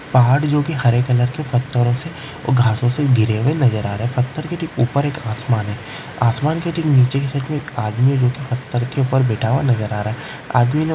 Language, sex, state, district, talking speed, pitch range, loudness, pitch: Hindi, male, Andhra Pradesh, Guntur, 245 wpm, 120-145 Hz, -18 LUFS, 125 Hz